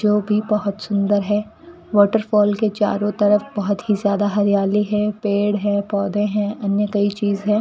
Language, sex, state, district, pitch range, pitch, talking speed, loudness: Hindi, female, Rajasthan, Bikaner, 205-210 Hz, 205 Hz, 175 wpm, -19 LUFS